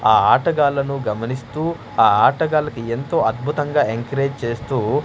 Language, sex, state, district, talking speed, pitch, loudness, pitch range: Telugu, male, Andhra Pradesh, Manyam, 105 wpm, 135 Hz, -19 LUFS, 115-150 Hz